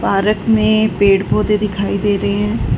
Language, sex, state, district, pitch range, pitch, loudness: Hindi, female, Uttar Pradesh, Budaun, 200-210 Hz, 205 Hz, -15 LUFS